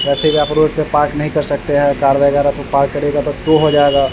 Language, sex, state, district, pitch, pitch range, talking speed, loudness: Hindi, male, Bihar, Vaishali, 145 Hz, 140-150 Hz, 275 wpm, -14 LUFS